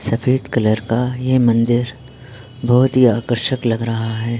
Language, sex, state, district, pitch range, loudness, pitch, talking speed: Hindi, male, Uttarakhand, Tehri Garhwal, 115-125 Hz, -17 LUFS, 120 Hz, 150 wpm